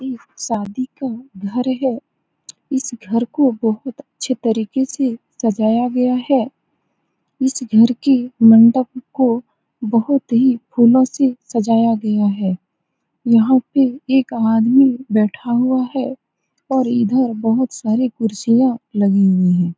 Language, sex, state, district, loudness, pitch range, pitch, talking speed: Hindi, female, Bihar, Saran, -16 LUFS, 225-260 Hz, 245 Hz, 125 wpm